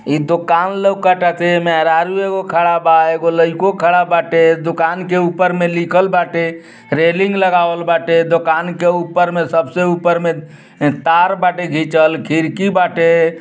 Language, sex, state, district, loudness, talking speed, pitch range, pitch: Bhojpuri, male, Uttar Pradesh, Ghazipur, -14 LUFS, 150 wpm, 165-175 Hz, 170 Hz